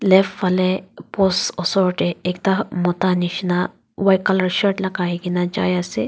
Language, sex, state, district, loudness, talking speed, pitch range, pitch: Nagamese, female, Nagaland, Dimapur, -19 LUFS, 150 wpm, 180-190 Hz, 185 Hz